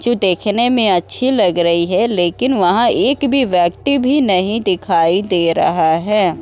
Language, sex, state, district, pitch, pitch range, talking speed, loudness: Hindi, female, Uttar Pradesh, Muzaffarnagar, 200 Hz, 175-250 Hz, 170 wpm, -14 LUFS